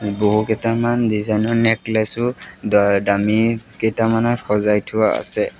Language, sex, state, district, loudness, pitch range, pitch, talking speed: Assamese, male, Assam, Sonitpur, -18 LUFS, 105-115 Hz, 110 Hz, 120 wpm